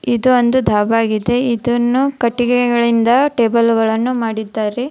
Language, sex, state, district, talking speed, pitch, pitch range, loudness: Kannada, female, Karnataka, Dharwad, 110 wpm, 235 Hz, 225-245 Hz, -15 LUFS